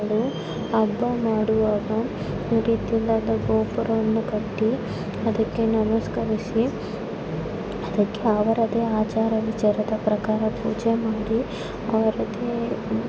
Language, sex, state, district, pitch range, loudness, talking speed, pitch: Kannada, female, Karnataka, Raichur, 215-225 Hz, -24 LUFS, 85 wpm, 220 Hz